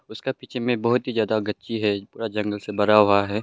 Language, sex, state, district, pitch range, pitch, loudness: Hindi, male, Arunachal Pradesh, Longding, 105-120 Hz, 110 Hz, -23 LUFS